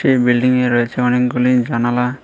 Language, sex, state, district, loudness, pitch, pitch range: Bengali, male, Tripura, West Tripura, -15 LUFS, 125 Hz, 120-125 Hz